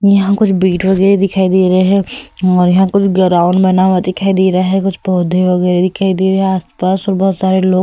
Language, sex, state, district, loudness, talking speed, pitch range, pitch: Hindi, female, Goa, North and South Goa, -12 LUFS, 235 wpm, 185-195 Hz, 190 Hz